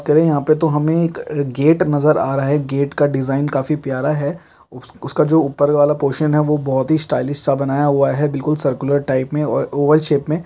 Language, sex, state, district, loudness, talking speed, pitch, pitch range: Hindi, male, Chhattisgarh, Raigarh, -17 LUFS, 245 wpm, 145 Hz, 140-150 Hz